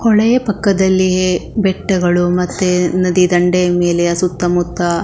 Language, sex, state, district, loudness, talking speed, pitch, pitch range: Kannada, female, Karnataka, Shimoga, -14 LUFS, 105 wpm, 180 Hz, 175-190 Hz